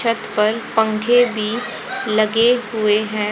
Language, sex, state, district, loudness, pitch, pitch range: Hindi, female, Haryana, Charkhi Dadri, -18 LUFS, 220 Hz, 215-230 Hz